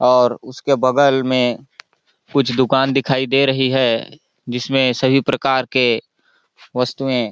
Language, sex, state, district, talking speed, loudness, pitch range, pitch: Hindi, male, Chhattisgarh, Balrampur, 125 wpm, -17 LUFS, 125-135 Hz, 130 Hz